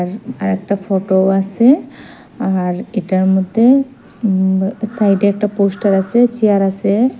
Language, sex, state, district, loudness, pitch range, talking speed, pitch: Bengali, female, Assam, Hailakandi, -15 LUFS, 190-225 Hz, 115 wpm, 200 Hz